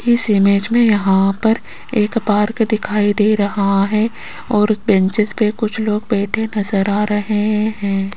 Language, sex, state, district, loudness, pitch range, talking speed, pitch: Hindi, female, Rajasthan, Jaipur, -16 LUFS, 200-220 Hz, 155 wpm, 210 Hz